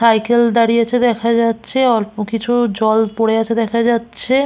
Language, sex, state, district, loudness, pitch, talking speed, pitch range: Bengali, female, West Bengal, Purulia, -15 LUFS, 230 Hz, 150 wpm, 225-235 Hz